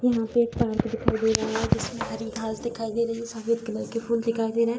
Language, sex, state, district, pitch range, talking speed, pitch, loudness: Hindi, female, Bihar, Araria, 225-235 Hz, 310 wpm, 230 Hz, -26 LUFS